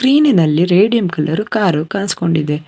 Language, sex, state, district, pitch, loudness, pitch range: Kannada, male, Karnataka, Bangalore, 180 Hz, -14 LUFS, 155-210 Hz